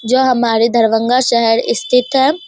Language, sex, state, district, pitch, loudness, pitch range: Hindi, female, Bihar, Darbhanga, 240 Hz, -13 LUFS, 230-255 Hz